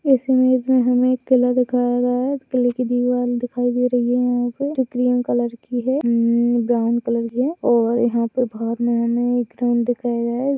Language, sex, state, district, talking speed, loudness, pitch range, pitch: Hindi, female, Bihar, Saharsa, 215 wpm, -19 LUFS, 240-250 Hz, 245 Hz